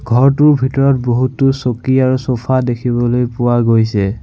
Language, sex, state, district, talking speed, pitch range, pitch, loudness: Assamese, male, Assam, Sonitpur, 125 wpm, 120-130 Hz, 125 Hz, -14 LUFS